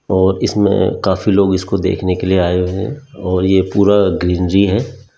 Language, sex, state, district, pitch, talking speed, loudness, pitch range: Hindi, male, Delhi, New Delhi, 95 Hz, 185 wpm, -15 LUFS, 90-100 Hz